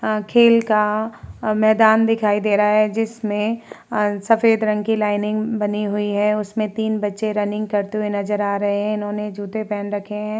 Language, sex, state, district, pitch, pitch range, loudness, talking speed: Hindi, female, Uttar Pradesh, Hamirpur, 210 Hz, 205-220 Hz, -19 LUFS, 185 wpm